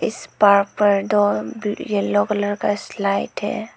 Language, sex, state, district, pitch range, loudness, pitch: Hindi, female, Arunachal Pradesh, Lower Dibang Valley, 200-205 Hz, -20 LUFS, 205 Hz